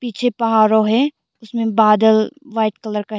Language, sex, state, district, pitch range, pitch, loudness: Hindi, female, Arunachal Pradesh, Longding, 215-235 Hz, 220 Hz, -16 LUFS